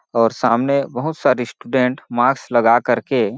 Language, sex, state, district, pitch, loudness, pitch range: Hindi, male, Chhattisgarh, Balrampur, 130 Hz, -17 LUFS, 120-140 Hz